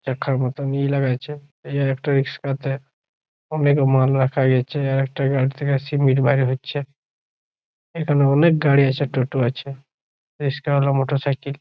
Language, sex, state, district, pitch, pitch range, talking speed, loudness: Bengali, male, West Bengal, Jhargram, 140 Hz, 135-140 Hz, 150 wpm, -20 LUFS